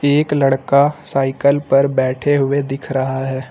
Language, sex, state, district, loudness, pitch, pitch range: Hindi, male, Uttar Pradesh, Lucknow, -16 LUFS, 140 Hz, 135-145 Hz